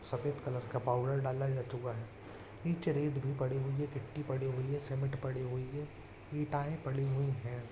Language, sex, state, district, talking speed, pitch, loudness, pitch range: Hindi, male, Chhattisgarh, Raigarh, 200 wpm, 135 Hz, -37 LUFS, 125-145 Hz